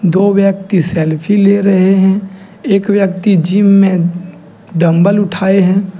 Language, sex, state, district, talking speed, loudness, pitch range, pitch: Hindi, male, Jharkhand, Deoghar, 130 wpm, -11 LUFS, 180-200 Hz, 195 Hz